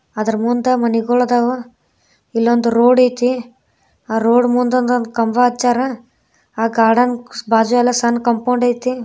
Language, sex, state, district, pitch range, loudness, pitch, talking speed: Kannada, female, Karnataka, Bijapur, 230-245 Hz, -15 LUFS, 245 Hz, 100 wpm